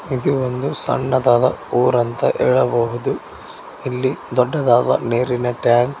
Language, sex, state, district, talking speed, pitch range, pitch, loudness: Kannada, male, Karnataka, Koppal, 100 wpm, 120-130 Hz, 125 Hz, -17 LUFS